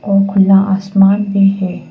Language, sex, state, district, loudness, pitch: Hindi, female, Arunachal Pradesh, Papum Pare, -12 LUFS, 195 Hz